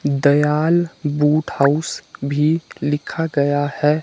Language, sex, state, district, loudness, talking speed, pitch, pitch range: Hindi, male, Himachal Pradesh, Shimla, -19 LUFS, 105 wpm, 150 Hz, 145-155 Hz